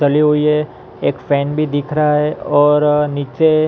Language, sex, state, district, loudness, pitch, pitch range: Hindi, male, Maharashtra, Mumbai Suburban, -15 LUFS, 150 Hz, 145-150 Hz